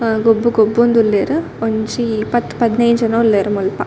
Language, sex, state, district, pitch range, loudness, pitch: Tulu, female, Karnataka, Dakshina Kannada, 220-235 Hz, -15 LUFS, 225 Hz